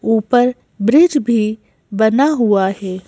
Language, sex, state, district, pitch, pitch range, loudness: Hindi, female, Madhya Pradesh, Bhopal, 220 Hz, 200-250 Hz, -15 LUFS